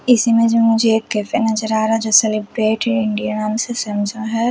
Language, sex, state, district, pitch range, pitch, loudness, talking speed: Hindi, female, Chhattisgarh, Raipur, 215-230 Hz, 220 Hz, -16 LUFS, 225 wpm